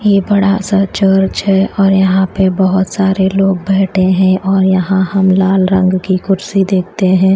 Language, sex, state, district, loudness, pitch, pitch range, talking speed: Hindi, female, Haryana, Charkhi Dadri, -12 LUFS, 190 Hz, 190-195 Hz, 180 wpm